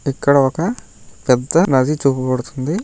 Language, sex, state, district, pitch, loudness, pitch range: Telugu, male, Telangana, Karimnagar, 140 Hz, -16 LUFS, 130-155 Hz